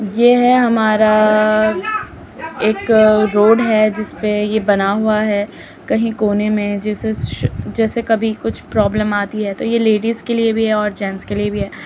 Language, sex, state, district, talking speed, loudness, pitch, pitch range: Hindi, female, Uttar Pradesh, Muzaffarnagar, 175 wpm, -15 LUFS, 215 Hz, 205-225 Hz